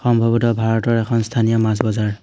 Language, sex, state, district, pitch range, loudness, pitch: Assamese, male, Assam, Hailakandi, 110-115 Hz, -18 LUFS, 115 Hz